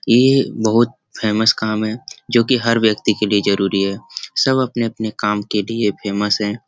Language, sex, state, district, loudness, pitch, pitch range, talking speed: Hindi, male, Bihar, Jamui, -17 LUFS, 110 Hz, 105-115 Hz, 180 wpm